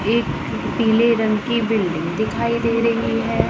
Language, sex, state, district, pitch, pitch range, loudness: Hindi, female, Punjab, Pathankot, 225 Hz, 215-235 Hz, -19 LUFS